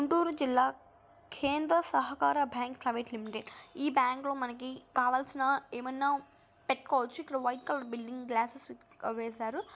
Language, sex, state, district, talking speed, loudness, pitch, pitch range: Telugu, female, Andhra Pradesh, Guntur, 135 wpm, -33 LUFS, 260 Hz, 245-285 Hz